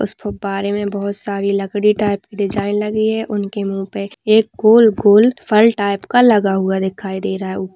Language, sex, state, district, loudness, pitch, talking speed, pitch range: Hindi, female, Maharashtra, Nagpur, -16 LUFS, 205 Hz, 200 wpm, 195-215 Hz